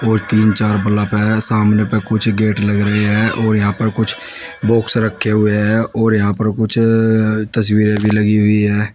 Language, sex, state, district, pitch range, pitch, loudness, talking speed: Hindi, male, Uttar Pradesh, Shamli, 105-110 Hz, 110 Hz, -14 LUFS, 195 wpm